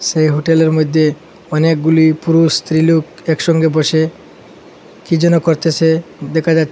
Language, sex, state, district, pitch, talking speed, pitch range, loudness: Bengali, male, Assam, Hailakandi, 160 Hz, 115 wpm, 155-165 Hz, -13 LUFS